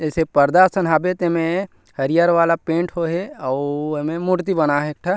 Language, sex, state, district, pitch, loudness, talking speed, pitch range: Chhattisgarhi, male, Chhattisgarh, Rajnandgaon, 165 Hz, -19 LUFS, 220 wpm, 150-180 Hz